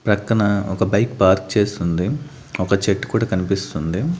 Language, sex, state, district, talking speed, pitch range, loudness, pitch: Telugu, male, Andhra Pradesh, Annamaya, 130 wpm, 95-115 Hz, -19 LUFS, 100 Hz